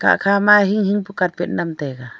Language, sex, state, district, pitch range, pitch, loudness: Wancho, female, Arunachal Pradesh, Longding, 170-205 Hz, 195 Hz, -17 LUFS